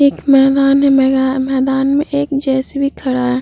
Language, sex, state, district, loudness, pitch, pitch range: Hindi, female, Bihar, Vaishali, -13 LUFS, 270 Hz, 265-280 Hz